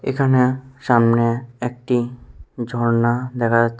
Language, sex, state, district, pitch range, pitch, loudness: Bengali, male, Tripura, West Tripura, 115-125 Hz, 120 Hz, -19 LUFS